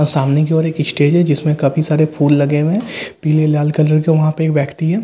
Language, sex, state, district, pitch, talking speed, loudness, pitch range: Hindi, male, Bihar, Katihar, 155 Hz, 285 wpm, -14 LUFS, 150-160 Hz